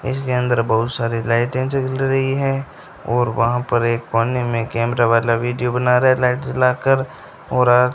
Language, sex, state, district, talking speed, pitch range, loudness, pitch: Hindi, male, Rajasthan, Bikaner, 195 wpm, 115-130 Hz, -18 LUFS, 125 Hz